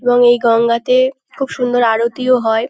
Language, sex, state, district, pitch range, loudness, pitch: Bengali, female, West Bengal, North 24 Parganas, 235-255 Hz, -14 LUFS, 245 Hz